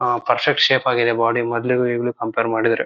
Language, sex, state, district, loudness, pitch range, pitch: Kannada, male, Karnataka, Shimoga, -18 LUFS, 115-125 Hz, 120 Hz